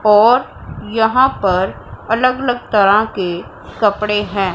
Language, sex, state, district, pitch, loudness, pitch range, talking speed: Hindi, female, Punjab, Pathankot, 210 Hz, -15 LUFS, 200-235 Hz, 120 wpm